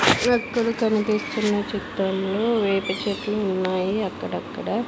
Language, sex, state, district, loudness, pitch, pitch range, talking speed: Telugu, female, Andhra Pradesh, Sri Satya Sai, -23 LUFS, 205 Hz, 190-220 Hz, 85 wpm